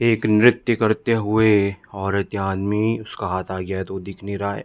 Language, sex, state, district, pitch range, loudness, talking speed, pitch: Hindi, male, Chhattisgarh, Bilaspur, 95-110 Hz, -21 LUFS, 230 wpm, 100 Hz